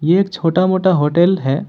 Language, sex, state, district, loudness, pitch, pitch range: Hindi, male, Jharkhand, Ranchi, -15 LUFS, 175 Hz, 160-185 Hz